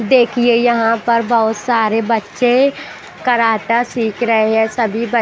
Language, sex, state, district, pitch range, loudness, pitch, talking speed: Hindi, female, Bihar, Patna, 225-240 Hz, -15 LUFS, 230 Hz, 140 wpm